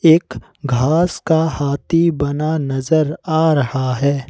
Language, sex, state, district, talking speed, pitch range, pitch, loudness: Hindi, male, Jharkhand, Ranchi, 125 wpm, 135-160 Hz, 150 Hz, -17 LUFS